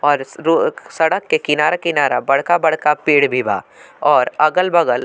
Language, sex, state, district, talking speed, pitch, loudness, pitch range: Bhojpuri, male, Bihar, Muzaffarpur, 155 wpm, 150 Hz, -16 LUFS, 145-165 Hz